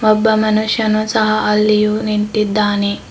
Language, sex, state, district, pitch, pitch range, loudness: Kannada, female, Karnataka, Bidar, 215 Hz, 210-215 Hz, -15 LUFS